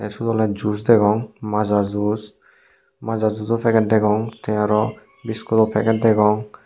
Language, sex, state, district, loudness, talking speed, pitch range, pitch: Chakma, male, Tripura, Unakoti, -19 LUFS, 135 wpm, 105-110 Hz, 110 Hz